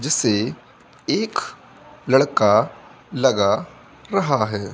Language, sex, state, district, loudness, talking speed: Hindi, male, Bihar, Saharsa, -20 LUFS, 75 wpm